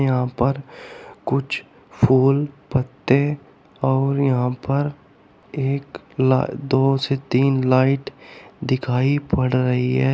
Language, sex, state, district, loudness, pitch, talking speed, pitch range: Hindi, male, Uttar Pradesh, Shamli, -20 LUFS, 135 Hz, 105 wpm, 130-140 Hz